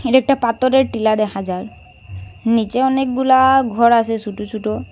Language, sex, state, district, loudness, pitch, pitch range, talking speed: Bengali, female, Assam, Hailakandi, -16 LUFS, 230 Hz, 215-260 Hz, 145 wpm